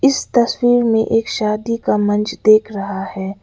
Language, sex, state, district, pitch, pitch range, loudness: Hindi, female, Sikkim, Gangtok, 215 Hz, 205-235 Hz, -16 LUFS